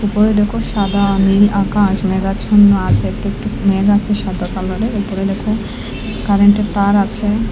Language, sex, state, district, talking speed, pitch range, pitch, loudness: Bengali, female, Assam, Hailakandi, 145 wpm, 195-210 Hz, 205 Hz, -15 LUFS